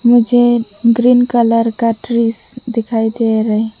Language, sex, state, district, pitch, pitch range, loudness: Hindi, female, Mizoram, Aizawl, 230 Hz, 225-240 Hz, -13 LUFS